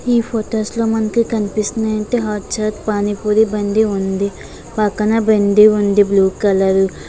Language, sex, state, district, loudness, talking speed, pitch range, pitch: Telugu, female, Andhra Pradesh, Visakhapatnam, -16 LUFS, 40 wpm, 200-220 Hz, 210 Hz